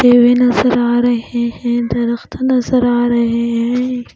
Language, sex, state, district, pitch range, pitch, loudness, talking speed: Hindi, female, Punjab, Pathankot, 235-245 Hz, 240 Hz, -14 LUFS, 145 wpm